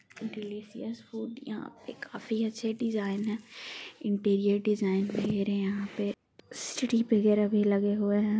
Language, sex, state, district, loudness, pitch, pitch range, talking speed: Hindi, female, Bihar, Gaya, -30 LUFS, 210 Hz, 205-225 Hz, 150 wpm